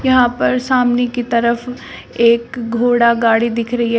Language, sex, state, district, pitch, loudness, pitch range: Hindi, female, Uttar Pradesh, Shamli, 240 Hz, -15 LUFS, 235-245 Hz